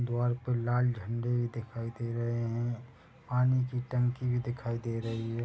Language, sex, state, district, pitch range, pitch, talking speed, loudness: Hindi, male, Chhattisgarh, Bilaspur, 115-125 Hz, 120 Hz, 185 wpm, -32 LUFS